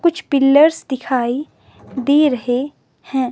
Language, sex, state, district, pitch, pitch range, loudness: Hindi, female, Himachal Pradesh, Shimla, 275 Hz, 255-300 Hz, -16 LUFS